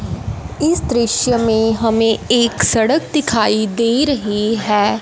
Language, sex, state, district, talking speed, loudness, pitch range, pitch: Hindi, female, Punjab, Fazilka, 120 wpm, -15 LUFS, 220-240 Hz, 230 Hz